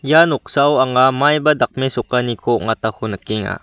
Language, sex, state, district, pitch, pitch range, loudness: Garo, male, Meghalaya, West Garo Hills, 130 Hz, 115-140 Hz, -16 LUFS